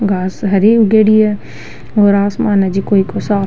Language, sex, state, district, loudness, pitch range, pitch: Rajasthani, female, Rajasthan, Nagaur, -12 LUFS, 190-215 Hz, 200 Hz